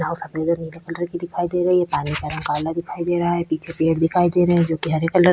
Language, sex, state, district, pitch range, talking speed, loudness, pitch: Hindi, female, Chhattisgarh, Korba, 160-175 Hz, 325 wpm, -21 LUFS, 170 Hz